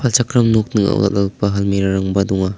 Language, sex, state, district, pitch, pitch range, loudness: Garo, male, Meghalaya, South Garo Hills, 100 Hz, 95-110 Hz, -16 LUFS